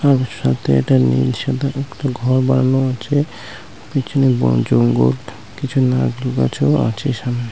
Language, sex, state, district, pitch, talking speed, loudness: Bengali, male, West Bengal, North 24 Parganas, 125 Hz, 120 wpm, -17 LUFS